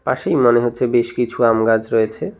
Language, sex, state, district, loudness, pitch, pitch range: Bengali, male, West Bengal, Cooch Behar, -17 LUFS, 120 Hz, 115-125 Hz